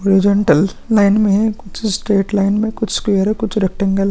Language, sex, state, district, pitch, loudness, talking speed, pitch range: Hindi, female, Bihar, Vaishali, 200 Hz, -15 LUFS, 205 wpm, 195-215 Hz